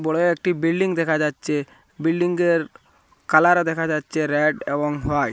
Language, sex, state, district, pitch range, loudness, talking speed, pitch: Bengali, male, Assam, Hailakandi, 150-170 Hz, -21 LUFS, 145 wpm, 160 Hz